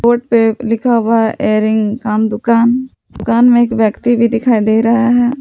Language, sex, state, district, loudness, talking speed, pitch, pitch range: Hindi, female, Jharkhand, Palamu, -12 LUFS, 175 wpm, 230 Hz, 220-240 Hz